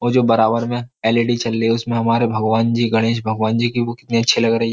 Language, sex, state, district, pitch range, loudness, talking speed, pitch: Hindi, male, Uttar Pradesh, Jyotiba Phule Nagar, 115-120 Hz, -17 LUFS, 280 wpm, 115 Hz